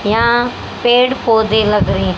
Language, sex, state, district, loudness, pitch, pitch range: Hindi, female, Haryana, Rohtak, -13 LUFS, 225 Hz, 215-240 Hz